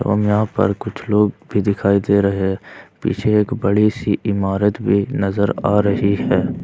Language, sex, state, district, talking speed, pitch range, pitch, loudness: Hindi, male, Jharkhand, Ranchi, 180 wpm, 100-105 Hz, 100 Hz, -18 LUFS